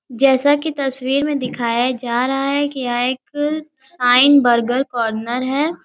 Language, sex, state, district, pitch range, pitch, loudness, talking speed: Hindi, female, Uttar Pradesh, Varanasi, 245-285 Hz, 265 Hz, -17 LUFS, 145 wpm